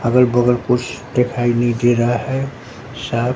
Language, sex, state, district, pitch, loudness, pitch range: Hindi, male, Bihar, Katihar, 125 Hz, -17 LUFS, 120-125 Hz